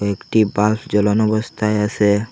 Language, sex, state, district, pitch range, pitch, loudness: Bengali, male, Assam, Hailakandi, 105-110 Hz, 105 Hz, -18 LUFS